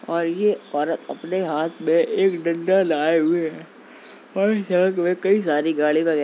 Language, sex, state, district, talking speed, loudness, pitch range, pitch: Hindi, male, Uttar Pradesh, Jalaun, 190 wpm, -21 LUFS, 160-190 Hz, 170 Hz